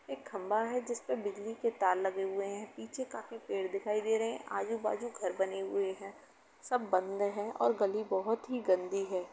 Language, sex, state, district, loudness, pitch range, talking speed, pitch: Hindi, female, Uttar Pradesh, Etah, -35 LUFS, 190-225 Hz, 205 wpm, 200 Hz